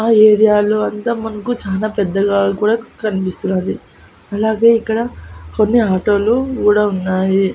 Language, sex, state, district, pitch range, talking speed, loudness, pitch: Telugu, female, Andhra Pradesh, Annamaya, 195-225 Hz, 125 wpm, -15 LUFS, 210 Hz